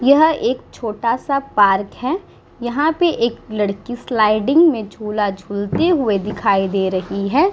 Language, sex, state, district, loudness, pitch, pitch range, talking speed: Hindi, female, Uttar Pradesh, Muzaffarnagar, -18 LUFS, 225 Hz, 200-275 Hz, 150 wpm